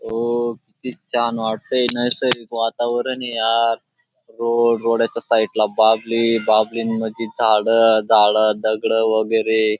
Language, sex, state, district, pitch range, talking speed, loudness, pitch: Marathi, male, Maharashtra, Dhule, 110-120 Hz, 130 wpm, -18 LUFS, 115 Hz